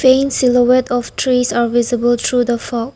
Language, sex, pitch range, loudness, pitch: English, female, 240-255 Hz, -15 LUFS, 245 Hz